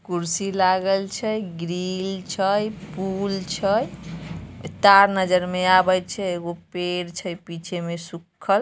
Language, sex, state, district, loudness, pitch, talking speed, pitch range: Magahi, female, Bihar, Samastipur, -22 LUFS, 185 Hz, 130 wpm, 175-195 Hz